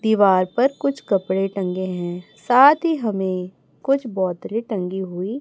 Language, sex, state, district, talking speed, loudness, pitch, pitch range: Hindi, female, Chhattisgarh, Raipur, 145 wpm, -20 LUFS, 195 Hz, 185-240 Hz